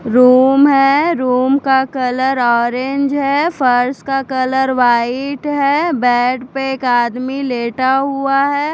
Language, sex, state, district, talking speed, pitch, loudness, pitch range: Hindi, female, Punjab, Fazilka, 130 wpm, 265 Hz, -14 LUFS, 250-275 Hz